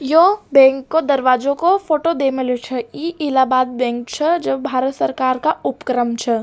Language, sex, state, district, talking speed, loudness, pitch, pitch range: Rajasthani, female, Rajasthan, Nagaur, 170 wpm, -17 LUFS, 270 Hz, 255-310 Hz